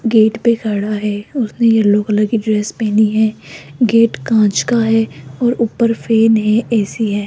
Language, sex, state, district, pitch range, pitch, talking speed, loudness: Hindi, female, Rajasthan, Jaipur, 210-230 Hz, 220 Hz, 175 wpm, -15 LUFS